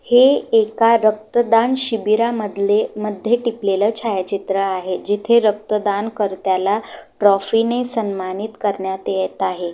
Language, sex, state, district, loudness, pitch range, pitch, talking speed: Marathi, female, Maharashtra, Solapur, -18 LUFS, 195-225 Hz, 210 Hz, 105 wpm